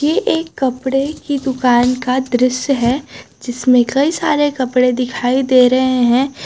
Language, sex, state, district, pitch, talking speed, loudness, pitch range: Hindi, female, Jharkhand, Garhwa, 260 Hz, 140 wpm, -15 LUFS, 250-280 Hz